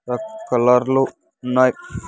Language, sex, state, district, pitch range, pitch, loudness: Telugu, male, Andhra Pradesh, Sri Satya Sai, 125-135 Hz, 130 Hz, -18 LUFS